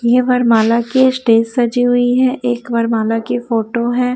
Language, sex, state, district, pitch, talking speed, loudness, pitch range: Hindi, female, Haryana, Jhajjar, 240 Hz, 175 wpm, -14 LUFS, 230-250 Hz